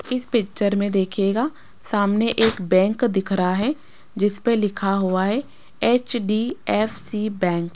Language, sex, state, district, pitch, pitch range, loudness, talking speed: Hindi, female, Rajasthan, Jaipur, 210 Hz, 195-230 Hz, -21 LUFS, 130 wpm